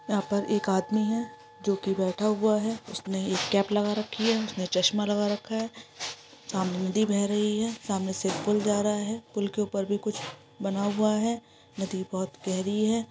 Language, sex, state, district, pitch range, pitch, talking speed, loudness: Hindi, female, Bihar, East Champaran, 195-215 Hz, 210 Hz, 200 wpm, -28 LUFS